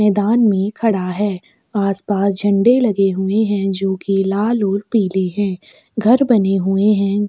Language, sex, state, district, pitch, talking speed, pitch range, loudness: Hindi, female, Chhattisgarh, Sukma, 200 Hz, 155 wpm, 195-215 Hz, -16 LUFS